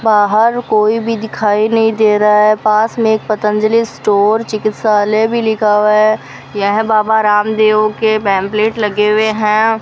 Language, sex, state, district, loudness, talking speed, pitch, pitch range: Hindi, female, Rajasthan, Bikaner, -12 LUFS, 160 wpm, 215 Hz, 210-220 Hz